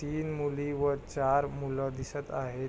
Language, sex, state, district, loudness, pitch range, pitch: Marathi, male, Maharashtra, Pune, -32 LUFS, 135-145 Hz, 140 Hz